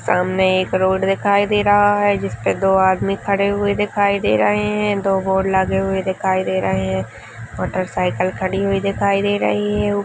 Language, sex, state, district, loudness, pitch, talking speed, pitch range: Hindi, female, Bihar, Purnia, -18 LUFS, 190 Hz, 190 wpm, 180-200 Hz